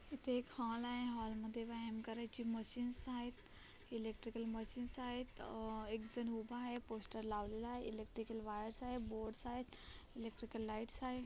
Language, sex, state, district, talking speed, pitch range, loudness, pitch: Marathi, female, Maharashtra, Chandrapur, 150 wpm, 220-245 Hz, -46 LUFS, 230 Hz